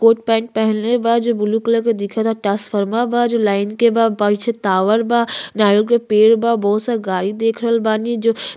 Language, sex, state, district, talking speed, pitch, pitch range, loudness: Bhojpuri, female, Uttar Pradesh, Ghazipur, 210 wpm, 225 Hz, 210-230 Hz, -16 LUFS